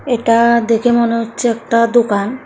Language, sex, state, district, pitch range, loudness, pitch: Bengali, female, Tripura, South Tripura, 230-240 Hz, -14 LUFS, 230 Hz